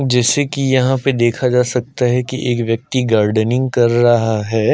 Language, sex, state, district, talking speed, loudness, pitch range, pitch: Hindi, male, Chhattisgarh, Sukma, 175 wpm, -15 LUFS, 115-130 Hz, 125 Hz